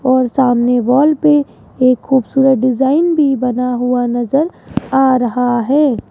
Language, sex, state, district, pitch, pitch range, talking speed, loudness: Hindi, female, Rajasthan, Jaipur, 255 Hz, 245-275 Hz, 135 wpm, -13 LUFS